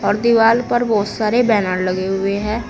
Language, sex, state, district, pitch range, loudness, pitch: Hindi, female, Uttar Pradesh, Saharanpur, 200-230 Hz, -16 LUFS, 215 Hz